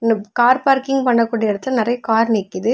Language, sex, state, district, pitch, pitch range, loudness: Tamil, female, Tamil Nadu, Kanyakumari, 230 Hz, 220-250 Hz, -17 LUFS